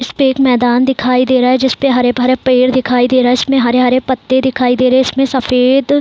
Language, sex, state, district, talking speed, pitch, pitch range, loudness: Hindi, female, Bihar, Saran, 250 wpm, 255 Hz, 250-265 Hz, -12 LUFS